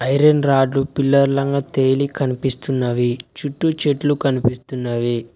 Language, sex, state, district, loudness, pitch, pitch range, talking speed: Telugu, male, Telangana, Mahabubabad, -18 LUFS, 135 Hz, 125-140 Hz, 100 wpm